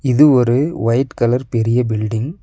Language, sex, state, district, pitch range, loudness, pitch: Tamil, male, Tamil Nadu, Nilgiris, 115-135 Hz, -16 LUFS, 125 Hz